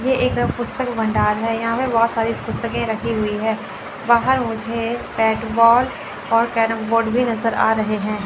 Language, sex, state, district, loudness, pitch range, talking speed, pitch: Hindi, female, Chandigarh, Chandigarh, -19 LUFS, 220-235 Hz, 175 wpm, 230 Hz